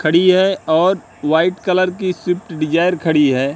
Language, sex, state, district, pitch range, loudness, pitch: Hindi, male, Madhya Pradesh, Katni, 160-185 Hz, -16 LUFS, 175 Hz